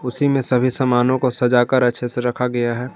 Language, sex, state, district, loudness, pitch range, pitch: Hindi, male, Jharkhand, Garhwa, -17 LUFS, 120-130 Hz, 125 Hz